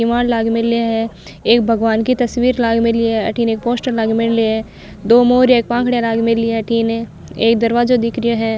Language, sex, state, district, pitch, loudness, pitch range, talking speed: Marwari, female, Rajasthan, Nagaur, 230 Hz, -15 LUFS, 225-240 Hz, 210 wpm